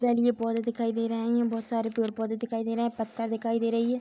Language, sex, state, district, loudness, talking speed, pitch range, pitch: Hindi, female, Bihar, Bhagalpur, -29 LUFS, 285 wpm, 225-235 Hz, 230 Hz